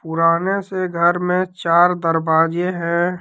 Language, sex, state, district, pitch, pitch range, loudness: Hindi, male, Jharkhand, Deoghar, 175 Hz, 165-180 Hz, -18 LUFS